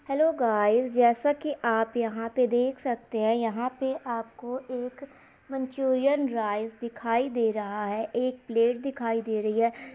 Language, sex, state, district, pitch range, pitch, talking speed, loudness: Hindi, female, Bihar, Jahanabad, 225-260 Hz, 240 Hz, 155 wpm, -27 LUFS